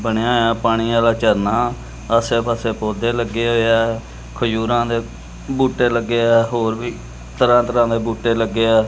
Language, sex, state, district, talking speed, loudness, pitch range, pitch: Punjabi, male, Punjab, Kapurthala, 160 wpm, -18 LUFS, 110-120 Hz, 115 Hz